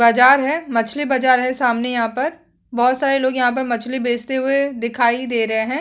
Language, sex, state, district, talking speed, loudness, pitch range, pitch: Hindi, female, Chhattisgarh, Sukma, 205 wpm, -18 LUFS, 235-265 Hz, 255 Hz